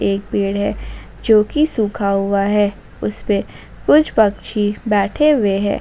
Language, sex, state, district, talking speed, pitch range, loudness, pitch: Hindi, female, Jharkhand, Ranchi, 155 wpm, 200-220 Hz, -17 LUFS, 205 Hz